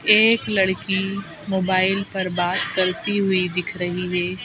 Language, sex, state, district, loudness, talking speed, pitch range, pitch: Hindi, female, Madhya Pradesh, Bhopal, -21 LUFS, 135 wpm, 180-195 Hz, 190 Hz